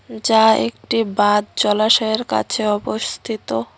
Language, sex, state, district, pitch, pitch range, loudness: Bengali, female, West Bengal, Cooch Behar, 215 Hz, 205-220 Hz, -18 LUFS